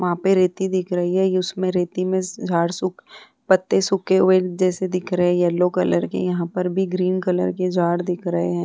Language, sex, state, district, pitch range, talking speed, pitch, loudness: Hindi, female, Bihar, Vaishali, 175-185 Hz, 230 wpm, 180 Hz, -20 LUFS